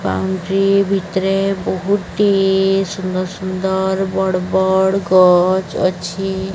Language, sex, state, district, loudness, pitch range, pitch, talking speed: Odia, male, Odisha, Sambalpur, -16 LUFS, 185-195 Hz, 190 Hz, 75 wpm